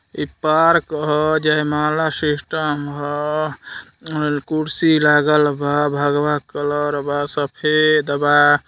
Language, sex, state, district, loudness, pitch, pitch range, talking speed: Hindi, male, Uttar Pradesh, Deoria, -18 LUFS, 150 Hz, 145-155 Hz, 95 wpm